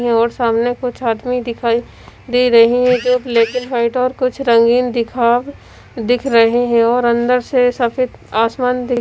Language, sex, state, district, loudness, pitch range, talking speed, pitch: Hindi, female, Punjab, Fazilka, -15 LUFS, 235-250 Hz, 165 wpm, 245 Hz